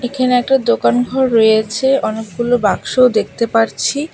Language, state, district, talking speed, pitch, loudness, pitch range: Bengali, West Bengal, Alipurduar, 130 wpm, 245 Hz, -14 LUFS, 220-255 Hz